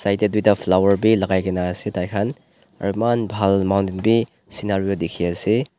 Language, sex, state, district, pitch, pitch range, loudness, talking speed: Nagamese, male, Nagaland, Dimapur, 100 Hz, 95-105 Hz, -20 LUFS, 185 wpm